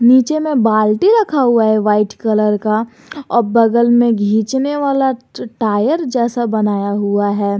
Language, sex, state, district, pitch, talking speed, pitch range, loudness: Hindi, male, Jharkhand, Garhwa, 230 Hz, 150 wpm, 210-260 Hz, -14 LUFS